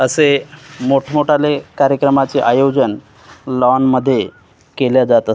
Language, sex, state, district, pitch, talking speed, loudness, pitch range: Marathi, male, Maharashtra, Gondia, 135 Hz, 80 wpm, -14 LUFS, 130-145 Hz